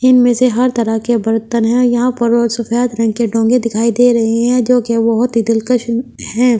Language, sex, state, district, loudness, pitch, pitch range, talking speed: Hindi, female, Delhi, New Delhi, -13 LUFS, 235 Hz, 230-245 Hz, 210 wpm